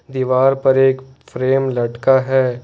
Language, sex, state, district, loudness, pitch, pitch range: Hindi, male, Jharkhand, Ranchi, -16 LUFS, 130 Hz, 130-135 Hz